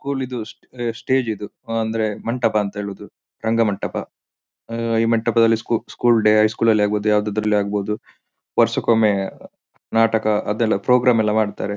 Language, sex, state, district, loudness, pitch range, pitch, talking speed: Kannada, male, Karnataka, Dakshina Kannada, -20 LUFS, 105-115 Hz, 110 Hz, 150 wpm